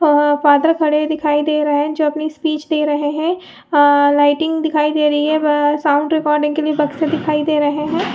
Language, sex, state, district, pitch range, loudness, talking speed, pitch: Hindi, female, Chhattisgarh, Raigarh, 295-310 Hz, -15 LUFS, 200 wpm, 300 Hz